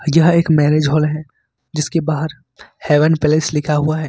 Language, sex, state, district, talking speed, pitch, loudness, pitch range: Hindi, male, Jharkhand, Ranchi, 175 wpm, 155 Hz, -16 LUFS, 150-160 Hz